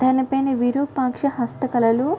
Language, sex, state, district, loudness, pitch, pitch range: Telugu, female, Andhra Pradesh, Guntur, -21 LUFS, 260 Hz, 245-270 Hz